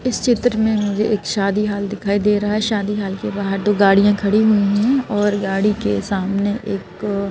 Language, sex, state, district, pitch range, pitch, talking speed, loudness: Hindi, female, Madhya Pradesh, Bhopal, 200-215 Hz, 205 Hz, 220 wpm, -18 LUFS